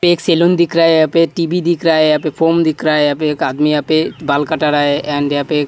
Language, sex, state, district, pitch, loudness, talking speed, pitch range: Hindi, male, Uttar Pradesh, Hamirpur, 155 Hz, -14 LUFS, 360 wpm, 150-165 Hz